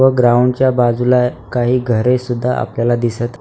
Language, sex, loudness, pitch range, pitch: Marathi, male, -15 LUFS, 120-125 Hz, 125 Hz